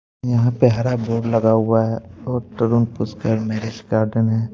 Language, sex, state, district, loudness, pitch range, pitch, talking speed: Hindi, male, Madhya Pradesh, Bhopal, -19 LUFS, 110-115 Hz, 115 Hz, 170 wpm